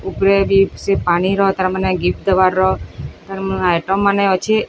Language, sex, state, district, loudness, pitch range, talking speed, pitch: Odia, female, Odisha, Sambalpur, -16 LUFS, 185-195 Hz, 165 wpm, 190 Hz